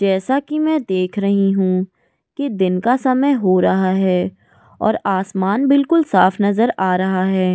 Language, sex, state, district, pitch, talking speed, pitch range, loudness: Hindi, female, Goa, North and South Goa, 195 Hz, 165 wpm, 185-260 Hz, -17 LUFS